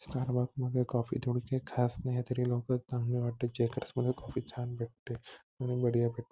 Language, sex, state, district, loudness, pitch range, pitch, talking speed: Marathi, male, Maharashtra, Nagpur, -34 LUFS, 120-125 Hz, 125 Hz, 150 wpm